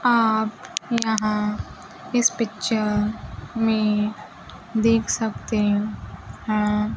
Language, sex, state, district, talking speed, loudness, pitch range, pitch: Hindi, female, Bihar, Kaimur, 70 wpm, -23 LUFS, 210-230 Hz, 220 Hz